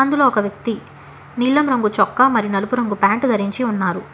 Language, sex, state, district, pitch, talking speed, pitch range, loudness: Telugu, female, Telangana, Hyderabad, 235 Hz, 175 wpm, 205-260 Hz, -17 LUFS